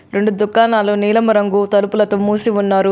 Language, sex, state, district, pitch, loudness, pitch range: Telugu, female, Telangana, Adilabad, 210 Hz, -14 LUFS, 200-215 Hz